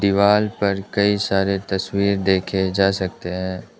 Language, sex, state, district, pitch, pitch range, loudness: Hindi, male, Arunachal Pradesh, Lower Dibang Valley, 95 Hz, 95-100 Hz, -20 LUFS